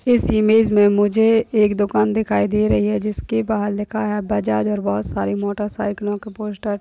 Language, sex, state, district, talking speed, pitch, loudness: Hindi, female, Uttar Pradesh, Etah, 195 wpm, 205 Hz, -19 LUFS